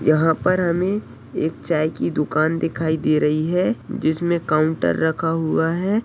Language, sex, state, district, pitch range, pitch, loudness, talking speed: Hindi, male, Uttar Pradesh, Deoria, 155-175 Hz, 160 Hz, -20 LUFS, 160 wpm